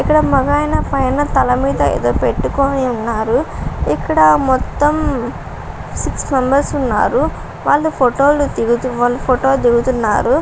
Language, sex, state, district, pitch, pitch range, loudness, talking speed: Telugu, female, Andhra Pradesh, Visakhapatnam, 265 Hz, 245-285 Hz, -15 LUFS, 115 wpm